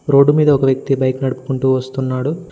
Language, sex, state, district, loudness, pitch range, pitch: Telugu, male, Telangana, Mahabubabad, -16 LUFS, 130-145 Hz, 135 Hz